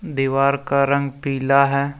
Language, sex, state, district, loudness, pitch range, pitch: Hindi, male, Jharkhand, Deoghar, -19 LUFS, 135-140 Hz, 140 Hz